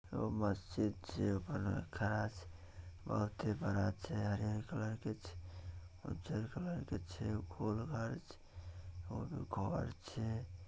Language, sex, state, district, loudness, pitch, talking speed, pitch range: Maithili, male, Bihar, Samastipur, -42 LUFS, 105 Hz, 105 wpm, 90-110 Hz